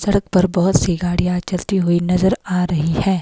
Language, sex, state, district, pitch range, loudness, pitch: Hindi, female, Himachal Pradesh, Shimla, 175-190 Hz, -17 LUFS, 180 Hz